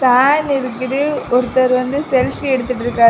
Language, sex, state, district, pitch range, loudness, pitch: Tamil, female, Tamil Nadu, Kanyakumari, 250-275 Hz, -16 LUFS, 255 Hz